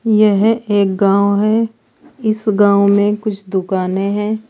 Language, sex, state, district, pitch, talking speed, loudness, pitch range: Hindi, female, Uttar Pradesh, Saharanpur, 210 Hz, 135 wpm, -15 LUFS, 200-220 Hz